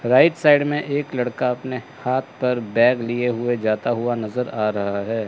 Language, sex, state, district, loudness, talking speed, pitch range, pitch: Hindi, male, Chandigarh, Chandigarh, -21 LUFS, 195 wpm, 115-130 Hz, 120 Hz